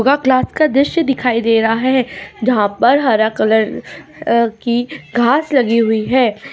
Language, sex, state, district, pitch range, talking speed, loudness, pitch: Hindi, female, Bihar, East Champaran, 225-270 Hz, 165 wpm, -14 LUFS, 245 Hz